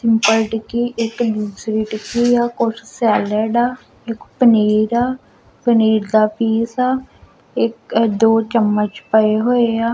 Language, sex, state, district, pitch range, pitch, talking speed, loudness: Punjabi, female, Punjab, Kapurthala, 220-240 Hz, 225 Hz, 135 wpm, -17 LUFS